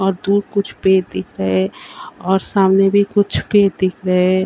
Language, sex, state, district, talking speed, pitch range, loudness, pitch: Hindi, female, Uttar Pradesh, Varanasi, 200 wpm, 185-200 Hz, -16 LUFS, 190 Hz